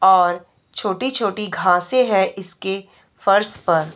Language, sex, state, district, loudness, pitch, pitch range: Hindi, female, Uttar Pradesh, Varanasi, -19 LUFS, 195 Hz, 180-210 Hz